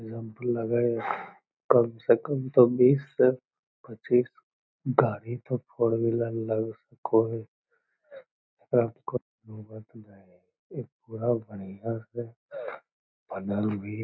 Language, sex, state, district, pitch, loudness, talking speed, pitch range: Magahi, male, Bihar, Lakhisarai, 115 Hz, -27 LUFS, 90 wpm, 110-120 Hz